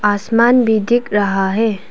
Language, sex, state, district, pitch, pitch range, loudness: Hindi, female, Arunachal Pradesh, Papum Pare, 215 Hz, 205-235 Hz, -15 LUFS